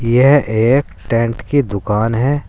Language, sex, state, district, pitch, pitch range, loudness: Hindi, male, Uttar Pradesh, Saharanpur, 115 Hz, 110-135 Hz, -15 LUFS